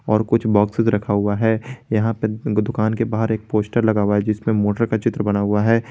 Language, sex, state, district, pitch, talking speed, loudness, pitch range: Hindi, male, Jharkhand, Garhwa, 110 Hz, 235 wpm, -19 LUFS, 105-115 Hz